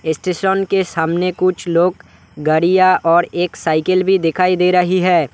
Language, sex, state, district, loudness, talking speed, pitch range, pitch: Hindi, male, West Bengal, Alipurduar, -15 LUFS, 155 wpm, 165-185 Hz, 180 Hz